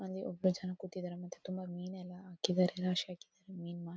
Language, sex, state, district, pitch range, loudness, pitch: Kannada, female, Karnataka, Dakshina Kannada, 180-185 Hz, -38 LUFS, 180 Hz